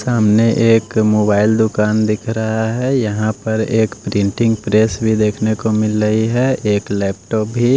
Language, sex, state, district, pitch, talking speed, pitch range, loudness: Hindi, male, Odisha, Nuapada, 110 Hz, 160 wpm, 105-115 Hz, -16 LUFS